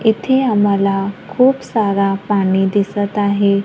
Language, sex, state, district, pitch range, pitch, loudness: Marathi, female, Maharashtra, Gondia, 195-220 Hz, 205 Hz, -15 LUFS